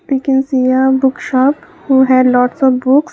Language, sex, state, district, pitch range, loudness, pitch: English, female, Assam, Kamrup Metropolitan, 255-270 Hz, -12 LUFS, 265 Hz